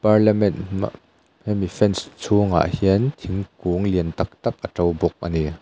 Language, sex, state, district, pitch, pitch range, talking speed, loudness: Mizo, male, Mizoram, Aizawl, 95 Hz, 90-105 Hz, 160 wpm, -21 LUFS